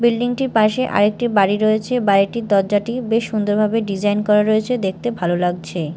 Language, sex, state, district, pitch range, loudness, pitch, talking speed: Bengali, female, Odisha, Malkangiri, 200-235 Hz, -18 LUFS, 215 Hz, 160 wpm